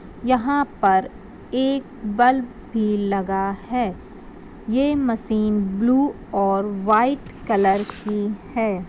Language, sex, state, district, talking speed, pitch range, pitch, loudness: Magahi, female, Bihar, Gaya, 100 wpm, 200-255 Hz, 220 Hz, -21 LUFS